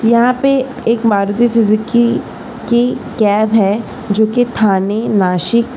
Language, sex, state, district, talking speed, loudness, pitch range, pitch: Hindi, female, Maharashtra, Solapur, 125 wpm, -14 LUFS, 210-240 Hz, 230 Hz